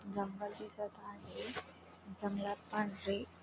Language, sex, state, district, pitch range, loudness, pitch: Marathi, female, Maharashtra, Dhule, 200-210 Hz, -42 LUFS, 205 Hz